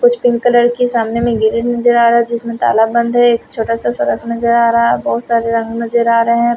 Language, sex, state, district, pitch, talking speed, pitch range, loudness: Hindi, female, Haryana, Rohtak, 235 Hz, 265 wpm, 230-235 Hz, -13 LUFS